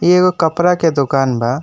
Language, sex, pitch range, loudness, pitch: Bhojpuri, male, 135-175 Hz, -14 LUFS, 160 Hz